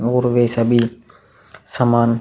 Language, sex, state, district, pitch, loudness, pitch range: Hindi, male, Chhattisgarh, Korba, 120 Hz, -17 LUFS, 115-120 Hz